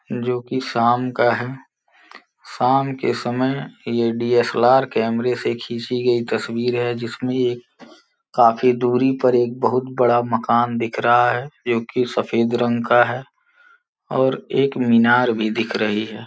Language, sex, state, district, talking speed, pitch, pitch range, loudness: Hindi, male, Uttar Pradesh, Gorakhpur, 150 wpm, 120 Hz, 120-130 Hz, -19 LUFS